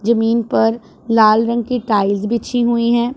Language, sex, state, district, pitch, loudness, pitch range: Hindi, female, Punjab, Pathankot, 230 Hz, -16 LUFS, 220-235 Hz